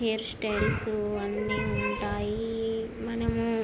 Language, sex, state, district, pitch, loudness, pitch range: Telugu, female, Andhra Pradesh, Visakhapatnam, 220 Hz, -29 LUFS, 205-225 Hz